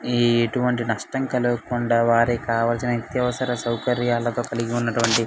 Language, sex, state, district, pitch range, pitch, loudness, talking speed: Telugu, male, Andhra Pradesh, Anantapur, 115-125 Hz, 120 Hz, -22 LUFS, 125 wpm